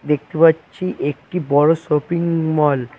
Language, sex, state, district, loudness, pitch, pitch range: Bengali, male, West Bengal, Cooch Behar, -18 LUFS, 155 Hz, 145-165 Hz